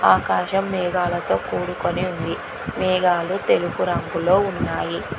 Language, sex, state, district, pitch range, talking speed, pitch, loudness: Telugu, female, Telangana, Hyderabad, 170-185 Hz, 90 wpm, 180 Hz, -21 LUFS